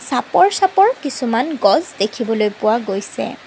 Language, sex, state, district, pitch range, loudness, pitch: Assamese, female, Assam, Kamrup Metropolitan, 215-355 Hz, -17 LUFS, 245 Hz